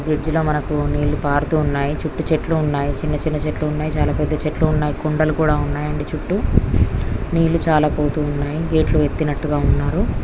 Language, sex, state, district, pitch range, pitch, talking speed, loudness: Telugu, female, Andhra Pradesh, Krishna, 145-155 Hz, 150 Hz, 160 wpm, -19 LUFS